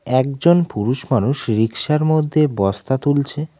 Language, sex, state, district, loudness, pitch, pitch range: Bengali, male, West Bengal, Cooch Behar, -18 LUFS, 140 Hz, 125-150 Hz